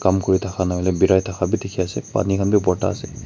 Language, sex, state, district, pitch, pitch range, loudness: Nagamese, male, Nagaland, Kohima, 95 Hz, 95-100 Hz, -20 LUFS